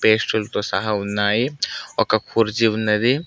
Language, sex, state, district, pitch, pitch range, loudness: Telugu, male, Telangana, Mahabubabad, 110 Hz, 105-115 Hz, -20 LUFS